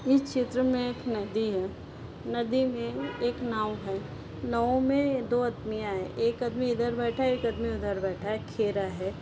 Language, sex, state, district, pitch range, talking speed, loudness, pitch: Hindi, female, Uttar Pradesh, Ghazipur, 215-250 Hz, 195 wpm, -30 LUFS, 235 Hz